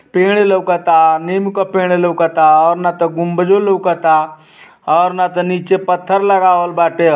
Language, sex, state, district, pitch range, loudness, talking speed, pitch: Bhojpuri, male, Uttar Pradesh, Ghazipur, 170-190 Hz, -13 LUFS, 140 wpm, 180 Hz